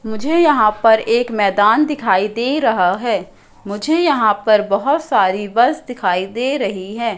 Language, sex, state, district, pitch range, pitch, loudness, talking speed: Hindi, female, Madhya Pradesh, Katni, 205-275 Hz, 225 Hz, -16 LUFS, 160 wpm